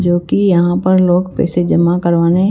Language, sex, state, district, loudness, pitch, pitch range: Hindi, female, Himachal Pradesh, Shimla, -13 LUFS, 175 Hz, 175-185 Hz